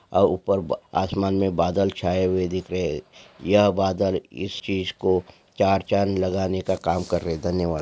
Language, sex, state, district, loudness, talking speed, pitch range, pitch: Hindi, male, Maharashtra, Aurangabad, -23 LUFS, 185 wpm, 90-95 Hz, 95 Hz